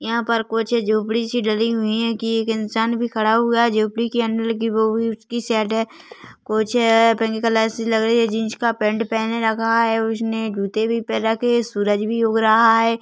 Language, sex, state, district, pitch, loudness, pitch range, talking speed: Hindi, female, Chhattisgarh, Bilaspur, 225 Hz, -19 LUFS, 220-230 Hz, 210 wpm